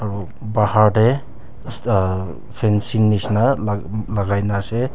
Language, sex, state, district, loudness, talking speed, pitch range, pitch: Nagamese, male, Nagaland, Kohima, -19 LUFS, 135 wpm, 100-115 Hz, 105 Hz